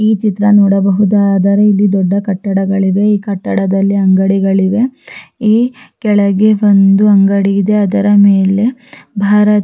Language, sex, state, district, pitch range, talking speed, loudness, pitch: Kannada, female, Karnataka, Raichur, 195-210 Hz, 100 wpm, -11 LUFS, 200 Hz